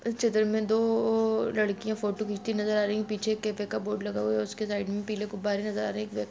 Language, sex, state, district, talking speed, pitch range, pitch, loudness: Hindi, female, Jharkhand, Sahebganj, 285 wpm, 205-220 Hz, 210 Hz, -29 LUFS